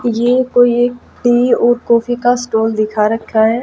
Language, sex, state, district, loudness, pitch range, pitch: Hindi, female, Haryana, Jhajjar, -13 LUFS, 225-245 Hz, 240 Hz